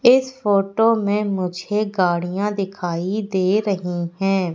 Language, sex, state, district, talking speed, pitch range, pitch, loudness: Hindi, female, Madhya Pradesh, Katni, 120 wpm, 180-210 Hz, 195 Hz, -20 LUFS